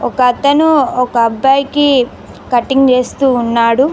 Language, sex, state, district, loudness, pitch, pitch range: Telugu, female, Telangana, Mahabubabad, -12 LUFS, 260 Hz, 245-275 Hz